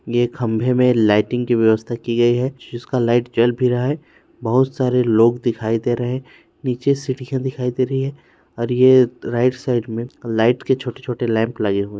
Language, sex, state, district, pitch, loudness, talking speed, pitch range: Hindi, male, Chhattisgarh, Rajnandgaon, 120 Hz, -19 LUFS, 195 wpm, 115-130 Hz